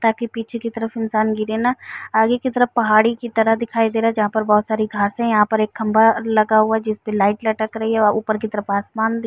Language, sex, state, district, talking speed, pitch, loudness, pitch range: Hindi, female, Uttar Pradesh, Varanasi, 270 wpm, 220 Hz, -18 LUFS, 215-225 Hz